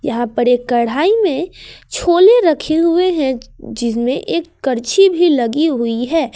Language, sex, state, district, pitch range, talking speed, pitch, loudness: Hindi, female, Jharkhand, Ranchi, 245-345 Hz, 150 wpm, 290 Hz, -14 LUFS